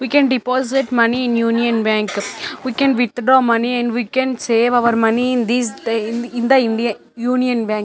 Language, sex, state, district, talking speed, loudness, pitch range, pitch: English, female, Chandigarh, Chandigarh, 185 wpm, -17 LUFS, 230-255 Hz, 240 Hz